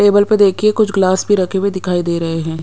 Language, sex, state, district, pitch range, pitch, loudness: Hindi, female, Punjab, Pathankot, 175-205 Hz, 190 Hz, -14 LUFS